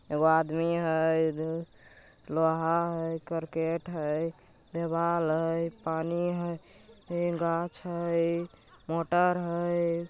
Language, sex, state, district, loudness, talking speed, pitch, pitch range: Magahi, male, Bihar, Jamui, -30 LUFS, 95 wpm, 165 Hz, 160-170 Hz